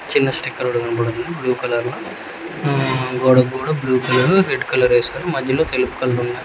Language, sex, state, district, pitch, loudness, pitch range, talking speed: Telugu, male, Telangana, Hyderabad, 130 Hz, -18 LUFS, 125-140 Hz, 165 wpm